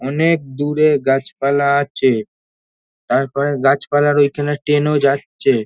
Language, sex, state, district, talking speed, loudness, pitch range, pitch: Bengali, male, West Bengal, North 24 Parganas, 105 wpm, -16 LUFS, 135-145 Hz, 140 Hz